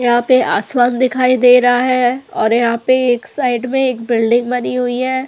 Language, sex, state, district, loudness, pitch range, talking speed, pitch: Hindi, female, Goa, North and South Goa, -14 LUFS, 240-255 Hz, 195 wpm, 250 Hz